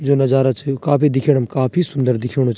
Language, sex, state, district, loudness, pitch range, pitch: Garhwali, male, Uttarakhand, Tehri Garhwal, -17 LUFS, 130-145 Hz, 135 Hz